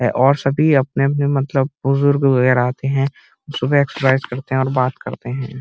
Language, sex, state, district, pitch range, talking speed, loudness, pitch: Hindi, male, Uttar Pradesh, Muzaffarnagar, 130-140 Hz, 170 wpm, -17 LUFS, 135 Hz